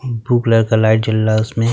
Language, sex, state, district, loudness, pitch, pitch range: Bhojpuri, male, Uttar Pradesh, Gorakhpur, -15 LUFS, 110 Hz, 110-115 Hz